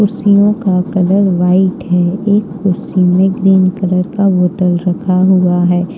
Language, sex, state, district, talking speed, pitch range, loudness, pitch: Hindi, female, Jharkhand, Ranchi, 150 wpm, 180-195 Hz, -12 LUFS, 185 Hz